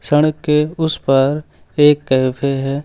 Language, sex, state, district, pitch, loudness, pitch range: Hindi, male, Uttar Pradesh, Lucknow, 150 Hz, -15 LUFS, 135-155 Hz